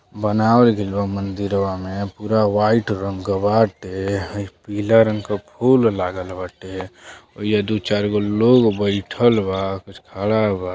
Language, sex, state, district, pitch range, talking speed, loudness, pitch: Bhojpuri, male, Uttar Pradesh, Deoria, 95-110 Hz, 150 wpm, -19 LUFS, 105 Hz